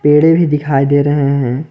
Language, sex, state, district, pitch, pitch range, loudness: Hindi, male, Jharkhand, Garhwa, 145 Hz, 140-150 Hz, -12 LUFS